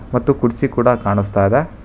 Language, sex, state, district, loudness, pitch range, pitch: Kannada, male, Karnataka, Bangalore, -16 LUFS, 100-135 Hz, 120 Hz